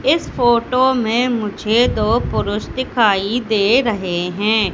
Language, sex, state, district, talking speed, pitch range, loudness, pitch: Hindi, female, Madhya Pradesh, Katni, 125 wpm, 210-250 Hz, -17 LUFS, 230 Hz